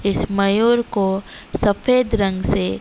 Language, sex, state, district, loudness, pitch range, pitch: Hindi, female, Odisha, Malkangiri, -17 LUFS, 195-230 Hz, 200 Hz